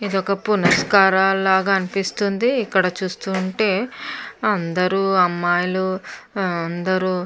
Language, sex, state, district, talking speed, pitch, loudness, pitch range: Telugu, female, Andhra Pradesh, Chittoor, 90 wpm, 190 Hz, -19 LUFS, 185-195 Hz